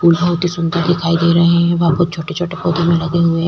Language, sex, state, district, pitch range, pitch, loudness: Hindi, female, Uttar Pradesh, Jyotiba Phule Nagar, 170-175 Hz, 170 Hz, -15 LUFS